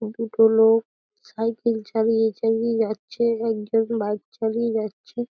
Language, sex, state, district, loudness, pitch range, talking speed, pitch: Bengali, female, West Bengal, Dakshin Dinajpur, -22 LUFS, 220-230 Hz, 115 wpm, 225 Hz